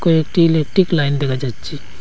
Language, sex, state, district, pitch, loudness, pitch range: Bengali, male, Assam, Hailakandi, 150 Hz, -16 LUFS, 135-165 Hz